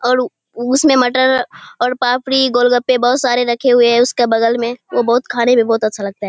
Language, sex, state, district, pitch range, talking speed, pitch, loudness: Hindi, female, Bihar, Kishanganj, 235-255 Hz, 220 wpm, 245 Hz, -14 LUFS